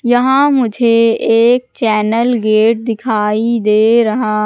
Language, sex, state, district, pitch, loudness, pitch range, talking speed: Hindi, female, Madhya Pradesh, Katni, 230 Hz, -12 LUFS, 215-245 Hz, 110 wpm